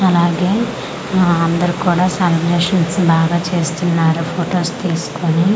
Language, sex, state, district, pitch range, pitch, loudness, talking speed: Telugu, female, Andhra Pradesh, Manyam, 165-180 Hz, 175 Hz, -16 LUFS, 95 wpm